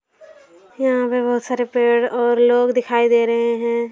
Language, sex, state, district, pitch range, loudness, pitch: Hindi, female, Bihar, Saran, 235-245 Hz, -17 LUFS, 240 Hz